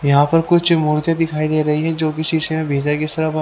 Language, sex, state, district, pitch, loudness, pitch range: Hindi, male, Haryana, Charkhi Dadri, 155 Hz, -17 LUFS, 150-160 Hz